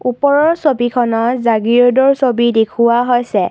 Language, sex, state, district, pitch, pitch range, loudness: Assamese, female, Assam, Kamrup Metropolitan, 245 Hz, 235-260 Hz, -13 LUFS